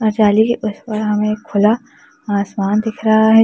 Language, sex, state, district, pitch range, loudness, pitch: Hindi, female, Uttar Pradesh, Lalitpur, 210-220 Hz, -16 LUFS, 215 Hz